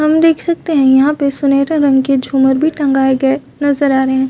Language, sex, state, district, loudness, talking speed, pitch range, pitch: Hindi, female, Chhattisgarh, Rajnandgaon, -13 LUFS, 235 wpm, 265-300 Hz, 275 Hz